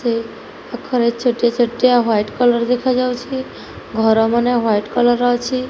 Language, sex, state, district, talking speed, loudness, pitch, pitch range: Odia, female, Odisha, Nuapada, 125 wpm, -17 LUFS, 240 Hz, 230-250 Hz